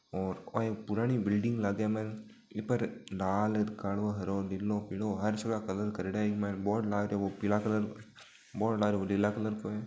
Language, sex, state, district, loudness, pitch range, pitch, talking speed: Marwari, male, Rajasthan, Nagaur, -33 LUFS, 100-110 Hz, 105 Hz, 225 wpm